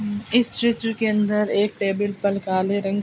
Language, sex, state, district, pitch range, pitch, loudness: Hindi, female, Bihar, Araria, 200-220 Hz, 205 Hz, -22 LUFS